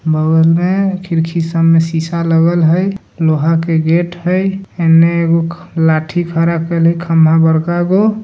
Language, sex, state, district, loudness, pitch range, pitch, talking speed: Hindi, male, Bihar, Darbhanga, -13 LUFS, 165-175 Hz, 165 Hz, 145 wpm